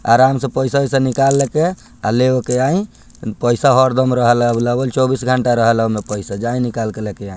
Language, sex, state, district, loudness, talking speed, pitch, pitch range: Bhojpuri, male, Bihar, Muzaffarpur, -16 LUFS, 205 wpm, 125 Hz, 115-135 Hz